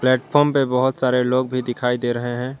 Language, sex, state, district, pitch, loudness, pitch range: Hindi, male, Jharkhand, Garhwa, 125 Hz, -20 LUFS, 125-130 Hz